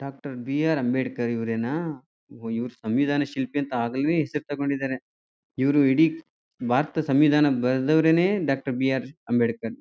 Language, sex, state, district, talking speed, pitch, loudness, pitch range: Kannada, male, Karnataka, Chamarajanagar, 130 wpm, 135 Hz, -24 LUFS, 125-150 Hz